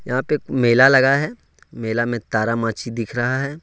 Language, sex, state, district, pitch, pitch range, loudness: Hindi, male, Jharkhand, Ranchi, 120 Hz, 115-135 Hz, -19 LUFS